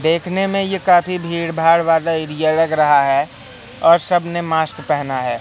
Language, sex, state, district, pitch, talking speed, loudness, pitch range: Hindi, male, Madhya Pradesh, Katni, 165 Hz, 190 wpm, -16 LUFS, 150-170 Hz